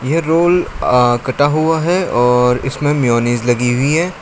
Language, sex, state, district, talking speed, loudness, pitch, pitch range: Hindi, male, Uttar Pradesh, Lucknow, 155 wpm, -14 LUFS, 135 Hz, 125-160 Hz